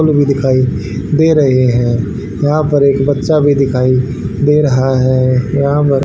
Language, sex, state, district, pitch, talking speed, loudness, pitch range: Hindi, male, Haryana, Rohtak, 135 Hz, 170 wpm, -12 LUFS, 130-145 Hz